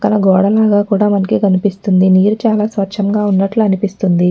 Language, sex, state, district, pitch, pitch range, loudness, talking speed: Telugu, female, Telangana, Nalgonda, 200 Hz, 190-210 Hz, -13 LUFS, 125 wpm